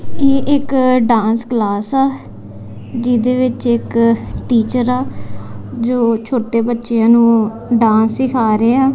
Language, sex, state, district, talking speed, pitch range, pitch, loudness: Punjabi, female, Punjab, Kapurthala, 115 wpm, 220-250 Hz, 235 Hz, -14 LUFS